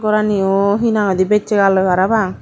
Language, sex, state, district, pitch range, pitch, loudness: Chakma, female, Tripura, Dhalai, 195-215 Hz, 200 Hz, -15 LUFS